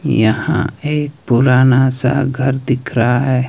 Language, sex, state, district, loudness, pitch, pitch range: Hindi, male, Himachal Pradesh, Shimla, -15 LUFS, 130 Hz, 125-140 Hz